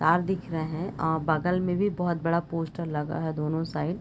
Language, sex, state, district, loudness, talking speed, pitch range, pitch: Hindi, female, Bihar, Sitamarhi, -28 LUFS, 240 wpm, 160-175 Hz, 165 Hz